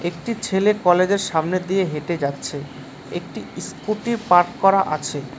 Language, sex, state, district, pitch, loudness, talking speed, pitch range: Bengali, male, West Bengal, Cooch Behar, 175 Hz, -20 LUFS, 135 wpm, 150-195 Hz